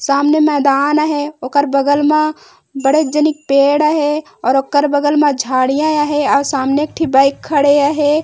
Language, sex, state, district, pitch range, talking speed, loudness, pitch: Chhattisgarhi, female, Chhattisgarh, Raigarh, 275-300 Hz, 160 wpm, -14 LUFS, 290 Hz